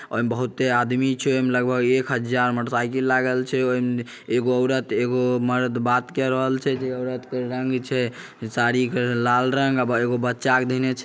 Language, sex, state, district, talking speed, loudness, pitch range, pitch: Maithili, male, Bihar, Samastipur, 200 wpm, -22 LUFS, 125-130 Hz, 125 Hz